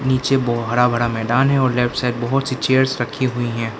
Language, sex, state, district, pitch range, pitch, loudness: Hindi, male, Arunachal Pradesh, Lower Dibang Valley, 120-130 Hz, 125 Hz, -18 LUFS